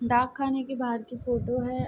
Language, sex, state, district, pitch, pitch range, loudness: Hindi, female, Bihar, Darbhanga, 250 Hz, 240-260 Hz, -29 LUFS